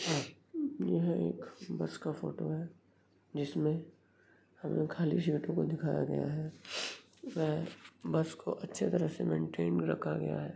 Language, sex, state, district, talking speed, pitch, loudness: Hindi, male, Bihar, Bhagalpur, 225 wpm, 150 Hz, -36 LUFS